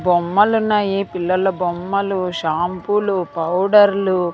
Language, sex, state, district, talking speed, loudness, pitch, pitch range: Telugu, female, Andhra Pradesh, Sri Satya Sai, 85 wpm, -18 LUFS, 185 Hz, 175-200 Hz